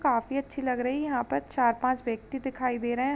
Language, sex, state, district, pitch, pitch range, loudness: Hindi, female, Uttar Pradesh, Jalaun, 255 Hz, 240-270 Hz, -29 LUFS